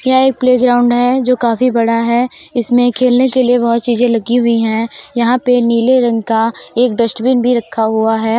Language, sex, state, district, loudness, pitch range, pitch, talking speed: Hindi, female, Uttar Pradesh, Jalaun, -13 LUFS, 230-250 Hz, 240 Hz, 215 wpm